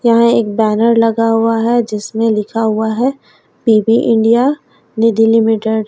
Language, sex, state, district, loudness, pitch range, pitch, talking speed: Hindi, female, Uttar Pradesh, Lalitpur, -13 LUFS, 220-235 Hz, 225 Hz, 155 wpm